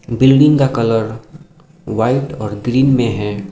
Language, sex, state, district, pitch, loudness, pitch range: Hindi, male, Sikkim, Gangtok, 125 Hz, -14 LUFS, 110-140 Hz